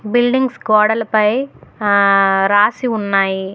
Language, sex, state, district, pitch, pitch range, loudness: Telugu, female, Telangana, Hyderabad, 215 Hz, 195-230 Hz, -14 LUFS